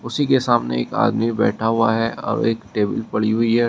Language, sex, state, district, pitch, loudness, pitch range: Hindi, male, Uttar Pradesh, Shamli, 115 Hz, -19 LUFS, 110-120 Hz